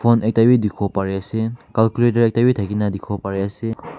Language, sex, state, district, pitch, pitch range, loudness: Nagamese, male, Nagaland, Kohima, 110 Hz, 100-115 Hz, -19 LUFS